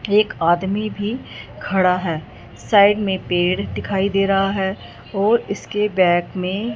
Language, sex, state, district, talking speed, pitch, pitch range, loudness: Hindi, female, Punjab, Fazilka, 140 wpm, 195 Hz, 180-205 Hz, -19 LUFS